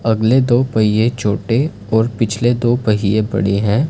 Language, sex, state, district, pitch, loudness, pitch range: Hindi, male, Punjab, Fazilka, 110 Hz, -16 LUFS, 105-120 Hz